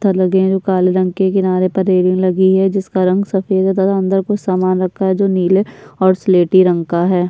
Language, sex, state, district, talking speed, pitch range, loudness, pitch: Hindi, female, Bihar, Kishanganj, 220 wpm, 185-195 Hz, -14 LUFS, 190 Hz